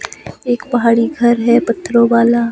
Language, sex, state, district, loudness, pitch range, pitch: Hindi, female, Himachal Pradesh, Shimla, -13 LUFS, 235-240 Hz, 235 Hz